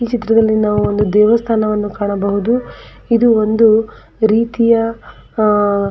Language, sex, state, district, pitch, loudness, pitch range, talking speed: Kannada, female, Karnataka, Belgaum, 220 Hz, -14 LUFS, 210-230 Hz, 110 wpm